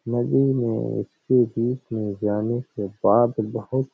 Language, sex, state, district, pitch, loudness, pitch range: Hindi, male, Uttar Pradesh, Hamirpur, 120 Hz, -23 LUFS, 110-130 Hz